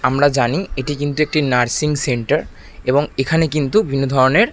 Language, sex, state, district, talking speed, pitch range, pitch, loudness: Bengali, male, West Bengal, Kolkata, 160 wpm, 130-150 Hz, 145 Hz, -17 LUFS